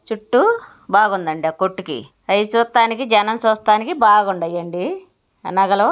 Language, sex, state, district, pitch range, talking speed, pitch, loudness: Telugu, female, Andhra Pradesh, Guntur, 190-230 Hz, 110 wpm, 210 Hz, -17 LUFS